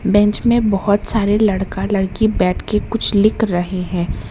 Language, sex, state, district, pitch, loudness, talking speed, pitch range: Hindi, male, Karnataka, Bangalore, 205 Hz, -17 LUFS, 165 wpm, 190-215 Hz